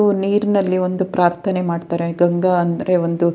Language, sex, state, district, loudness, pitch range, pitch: Kannada, female, Karnataka, Dakshina Kannada, -18 LUFS, 170-190 Hz, 180 Hz